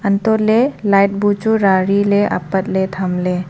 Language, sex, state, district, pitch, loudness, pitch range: Wancho, female, Arunachal Pradesh, Longding, 200 Hz, -15 LUFS, 190-205 Hz